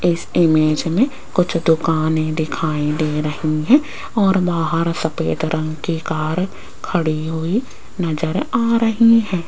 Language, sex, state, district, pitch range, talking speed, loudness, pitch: Hindi, female, Rajasthan, Jaipur, 155-185 Hz, 135 wpm, -18 LUFS, 165 Hz